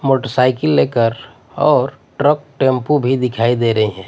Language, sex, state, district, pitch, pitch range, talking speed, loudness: Hindi, male, Odisha, Nuapada, 125 Hz, 115-140 Hz, 145 wpm, -16 LUFS